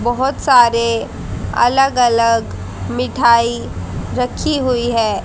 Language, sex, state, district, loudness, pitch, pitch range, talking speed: Hindi, female, Haryana, Jhajjar, -15 LUFS, 235 Hz, 230-250 Hz, 90 wpm